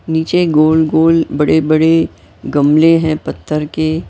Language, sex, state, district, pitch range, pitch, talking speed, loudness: Hindi, female, Maharashtra, Mumbai Suburban, 155-160 Hz, 160 Hz, 105 wpm, -13 LUFS